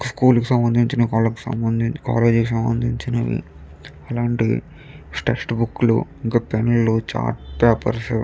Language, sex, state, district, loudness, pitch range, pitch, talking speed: Telugu, male, Andhra Pradesh, Chittoor, -20 LUFS, 115-120 Hz, 115 Hz, 115 wpm